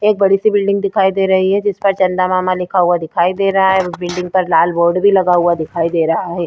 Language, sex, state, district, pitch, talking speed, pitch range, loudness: Hindi, female, Bihar, Vaishali, 185 Hz, 270 wpm, 175-195 Hz, -14 LUFS